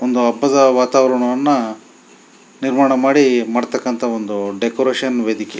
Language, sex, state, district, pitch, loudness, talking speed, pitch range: Kannada, male, Karnataka, Shimoga, 125 Hz, -16 LUFS, 85 wpm, 115-135 Hz